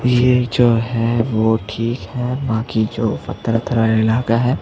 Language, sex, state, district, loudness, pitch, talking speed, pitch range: Hindi, male, Chhattisgarh, Jashpur, -18 LUFS, 115 Hz, 155 wpm, 110-125 Hz